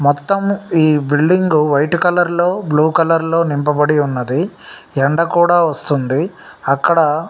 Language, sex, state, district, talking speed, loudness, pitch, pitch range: Telugu, male, Telangana, Nalgonda, 125 wpm, -15 LUFS, 160 Hz, 145-175 Hz